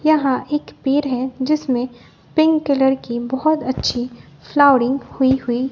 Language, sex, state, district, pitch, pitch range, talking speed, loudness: Hindi, female, Bihar, West Champaran, 265 Hz, 255-295 Hz, 135 wpm, -18 LUFS